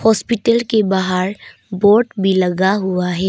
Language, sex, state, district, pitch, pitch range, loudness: Hindi, female, Arunachal Pradesh, Papum Pare, 195 Hz, 185-220 Hz, -16 LUFS